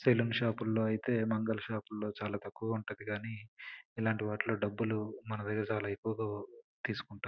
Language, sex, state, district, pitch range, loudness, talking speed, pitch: Telugu, male, Andhra Pradesh, Srikakulam, 105-115 Hz, -36 LUFS, 140 wpm, 110 Hz